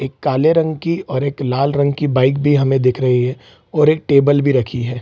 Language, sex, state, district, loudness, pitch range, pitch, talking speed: Hindi, male, Bihar, Saran, -16 LUFS, 130-145 Hz, 140 Hz, 250 wpm